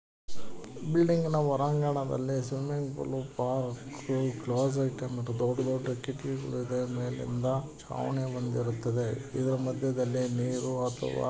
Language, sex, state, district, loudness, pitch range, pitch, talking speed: Kannada, male, Karnataka, Gulbarga, -31 LUFS, 125-135 Hz, 130 Hz, 85 wpm